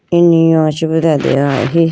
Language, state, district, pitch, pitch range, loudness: Idu Mishmi, Arunachal Pradesh, Lower Dibang Valley, 160 Hz, 155-165 Hz, -12 LUFS